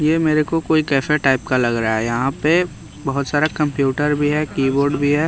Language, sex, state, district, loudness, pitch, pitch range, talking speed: Hindi, male, Bihar, West Champaran, -18 LUFS, 145 Hz, 135-155 Hz, 225 wpm